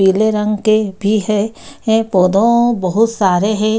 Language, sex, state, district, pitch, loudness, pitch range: Hindi, female, Bihar, Gaya, 215 Hz, -14 LUFS, 200-220 Hz